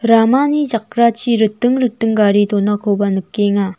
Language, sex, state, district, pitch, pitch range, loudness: Garo, female, Meghalaya, North Garo Hills, 220 Hz, 205-235 Hz, -15 LUFS